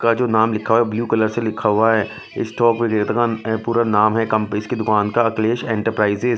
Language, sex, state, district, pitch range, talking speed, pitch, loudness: Hindi, male, Bihar, West Champaran, 110-115 Hz, 225 wpm, 110 Hz, -18 LUFS